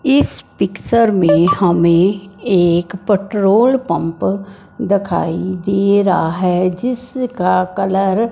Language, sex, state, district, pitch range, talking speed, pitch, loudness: Hindi, male, Punjab, Fazilka, 180-210 Hz, 100 wpm, 195 Hz, -15 LUFS